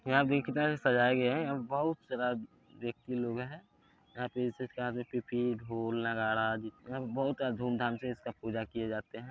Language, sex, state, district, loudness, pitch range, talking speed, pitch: Maithili, male, Bihar, Supaul, -34 LUFS, 115-130 Hz, 225 wpm, 125 Hz